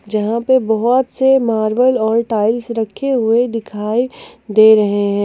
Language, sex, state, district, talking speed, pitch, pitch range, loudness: Hindi, female, Jharkhand, Palamu, 150 wpm, 225 Hz, 215-245 Hz, -15 LUFS